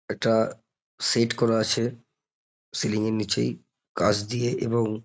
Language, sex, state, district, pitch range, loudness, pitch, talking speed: Bengali, male, West Bengal, North 24 Parganas, 110-115 Hz, -25 LUFS, 115 Hz, 120 wpm